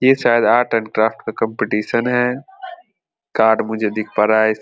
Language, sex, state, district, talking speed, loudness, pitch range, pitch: Hindi, male, Bihar, Saran, 195 wpm, -17 LUFS, 110-125 Hz, 115 Hz